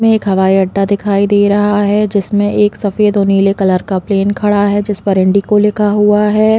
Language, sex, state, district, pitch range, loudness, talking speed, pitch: Hindi, female, Chhattisgarh, Balrampur, 195-210 Hz, -12 LUFS, 210 wpm, 205 Hz